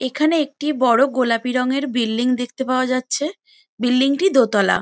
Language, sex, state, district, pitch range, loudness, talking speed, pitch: Bengali, female, West Bengal, Jalpaiguri, 250-295 Hz, -19 LUFS, 150 wpm, 260 Hz